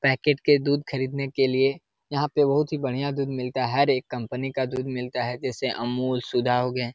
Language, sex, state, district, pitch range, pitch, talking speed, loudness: Hindi, male, Uttar Pradesh, Jalaun, 125-140 Hz, 130 Hz, 225 wpm, -25 LUFS